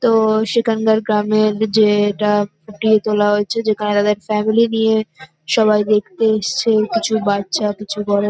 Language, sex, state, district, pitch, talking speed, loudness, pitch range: Bengali, female, West Bengal, North 24 Parganas, 215 Hz, 135 wpm, -16 LUFS, 205-220 Hz